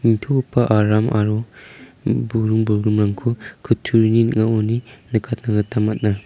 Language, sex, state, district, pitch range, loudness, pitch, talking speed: Garo, male, Meghalaya, South Garo Hills, 105-115 Hz, -19 LUFS, 110 Hz, 105 wpm